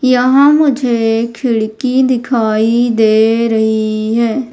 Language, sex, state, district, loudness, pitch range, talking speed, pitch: Hindi, female, Madhya Pradesh, Umaria, -12 LUFS, 220-255 Hz, 95 wpm, 235 Hz